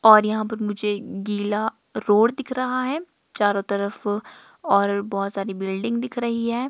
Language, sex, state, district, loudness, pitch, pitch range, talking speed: Hindi, female, Himachal Pradesh, Shimla, -23 LUFS, 210 Hz, 200-235 Hz, 160 wpm